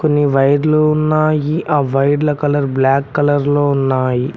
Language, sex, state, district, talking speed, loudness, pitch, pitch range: Telugu, male, Telangana, Mahabubabad, 125 wpm, -14 LUFS, 145 Hz, 135-155 Hz